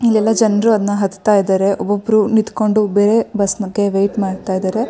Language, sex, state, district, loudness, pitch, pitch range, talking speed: Kannada, female, Karnataka, Shimoga, -15 LUFS, 205 Hz, 195-215 Hz, 145 wpm